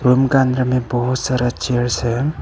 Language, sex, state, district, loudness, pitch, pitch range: Hindi, male, Arunachal Pradesh, Papum Pare, -18 LUFS, 125 Hz, 120-130 Hz